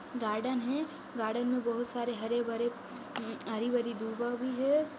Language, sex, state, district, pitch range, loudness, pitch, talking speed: Hindi, female, Uttar Pradesh, Budaun, 230-255 Hz, -34 LUFS, 240 Hz, 155 wpm